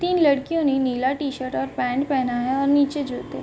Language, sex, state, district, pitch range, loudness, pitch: Hindi, female, Uttar Pradesh, Varanasi, 255-285 Hz, -22 LUFS, 270 Hz